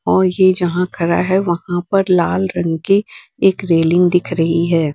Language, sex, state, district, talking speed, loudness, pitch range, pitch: Hindi, female, Bihar, West Champaran, 180 wpm, -15 LUFS, 170-190 Hz, 175 Hz